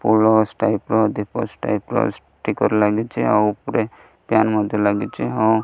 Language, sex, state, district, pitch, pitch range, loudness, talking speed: Odia, male, Odisha, Malkangiri, 110 Hz, 105-110 Hz, -20 LUFS, 140 wpm